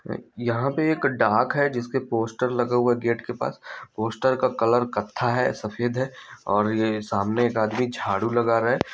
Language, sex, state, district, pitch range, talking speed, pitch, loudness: Hindi, male, Chhattisgarh, Bilaspur, 110-125 Hz, 195 wpm, 120 Hz, -24 LUFS